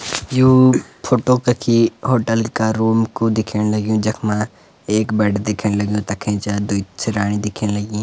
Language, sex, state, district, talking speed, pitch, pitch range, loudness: Garhwali, male, Uttarakhand, Uttarkashi, 150 wpm, 110 Hz, 105-115 Hz, -18 LUFS